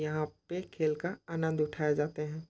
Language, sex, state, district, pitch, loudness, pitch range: Hindi, male, Chhattisgarh, Korba, 155 Hz, -34 LUFS, 150-165 Hz